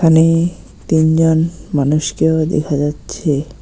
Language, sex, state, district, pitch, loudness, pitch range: Bengali, male, West Bengal, Alipurduar, 160 Hz, -15 LUFS, 150-160 Hz